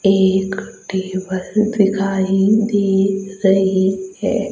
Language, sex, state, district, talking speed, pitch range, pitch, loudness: Hindi, female, Madhya Pradesh, Umaria, 80 wpm, 190-200 Hz, 195 Hz, -17 LUFS